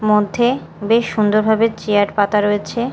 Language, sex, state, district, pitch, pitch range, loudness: Bengali, female, Odisha, Malkangiri, 210 Hz, 205-230 Hz, -16 LUFS